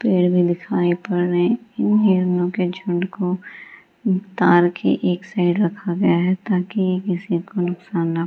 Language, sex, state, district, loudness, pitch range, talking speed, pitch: Hindi, female, Bihar, Gaya, -20 LUFS, 175-190 Hz, 160 wpm, 180 Hz